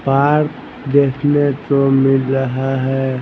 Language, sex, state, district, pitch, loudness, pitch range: Hindi, male, Bihar, Patna, 135 Hz, -16 LUFS, 135-140 Hz